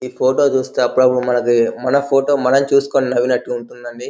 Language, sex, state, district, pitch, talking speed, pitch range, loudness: Telugu, male, Telangana, Karimnagar, 130 Hz, 145 wpm, 120-135 Hz, -16 LUFS